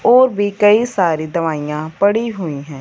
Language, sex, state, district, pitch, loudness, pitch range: Hindi, female, Punjab, Fazilka, 180 Hz, -16 LUFS, 155-210 Hz